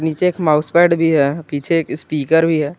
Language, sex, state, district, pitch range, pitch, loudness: Hindi, male, Jharkhand, Garhwa, 150-165 Hz, 160 Hz, -16 LUFS